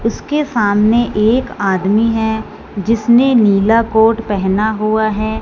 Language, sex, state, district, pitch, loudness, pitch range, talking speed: Hindi, female, Punjab, Fazilka, 220 Hz, -14 LUFS, 210-230 Hz, 120 wpm